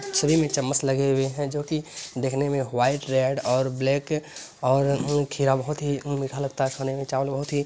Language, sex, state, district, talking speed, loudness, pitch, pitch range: Hindi, male, Bihar, Lakhisarai, 220 wpm, -25 LUFS, 140 Hz, 135-145 Hz